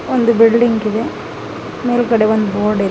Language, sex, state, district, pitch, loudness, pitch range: Kannada, female, Karnataka, Mysore, 225 Hz, -14 LUFS, 215-235 Hz